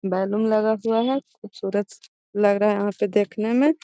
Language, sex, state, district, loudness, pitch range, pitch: Magahi, female, Bihar, Gaya, -22 LUFS, 205-225 Hz, 210 Hz